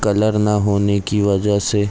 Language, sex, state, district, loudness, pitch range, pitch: Hindi, male, Chhattisgarh, Raigarh, -17 LUFS, 100-105 Hz, 105 Hz